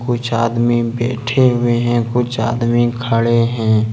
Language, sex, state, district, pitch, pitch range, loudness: Hindi, male, Jharkhand, Ranchi, 120 Hz, 115-120 Hz, -16 LUFS